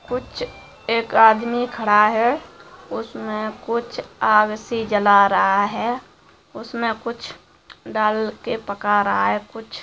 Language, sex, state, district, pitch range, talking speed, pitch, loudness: Bhojpuri, female, Bihar, Saran, 210-235 Hz, 115 wpm, 220 Hz, -20 LUFS